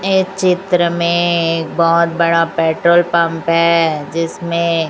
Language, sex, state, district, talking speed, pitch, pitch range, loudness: Hindi, female, Chhattisgarh, Raipur, 120 wpm, 170 Hz, 165-170 Hz, -14 LUFS